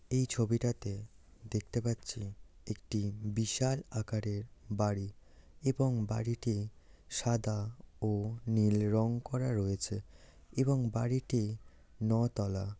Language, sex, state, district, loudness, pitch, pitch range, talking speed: Bengali, male, West Bengal, Dakshin Dinajpur, -35 LUFS, 110 Hz, 105-120 Hz, 90 wpm